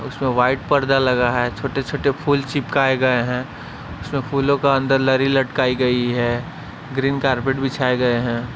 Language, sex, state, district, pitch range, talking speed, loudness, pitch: Hindi, male, Uttar Pradesh, Etah, 125-140 Hz, 160 wpm, -19 LUFS, 135 Hz